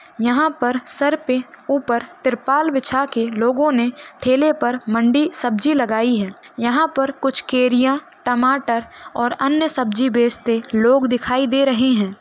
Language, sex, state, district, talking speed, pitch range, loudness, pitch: Hindi, female, Bihar, Gopalganj, 145 wpm, 240-280 Hz, -18 LUFS, 255 Hz